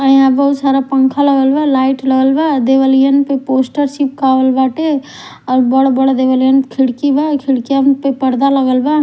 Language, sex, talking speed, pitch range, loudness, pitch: Bhojpuri, female, 135 wpm, 265-280 Hz, -12 LUFS, 270 Hz